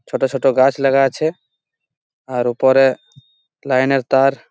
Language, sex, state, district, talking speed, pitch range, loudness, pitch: Bengali, male, West Bengal, Malda, 135 wpm, 130-135 Hz, -16 LUFS, 135 Hz